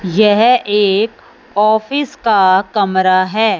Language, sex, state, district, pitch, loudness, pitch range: Hindi, male, Punjab, Fazilka, 210 Hz, -13 LUFS, 195-220 Hz